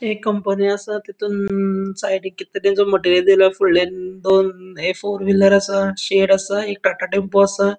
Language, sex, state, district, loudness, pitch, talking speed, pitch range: Konkani, male, Goa, North and South Goa, -18 LUFS, 195 Hz, 170 wpm, 190-205 Hz